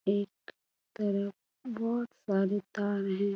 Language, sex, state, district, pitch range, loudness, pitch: Hindi, female, Bihar, Kishanganj, 195-215 Hz, -33 LUFS, 200 Hz